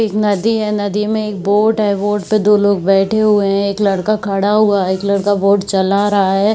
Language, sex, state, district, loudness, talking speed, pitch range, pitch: Hindi, female, Bihar, Saharsa, -14 LUFS, 230 wpm, 200-210 Hz, 205 Hz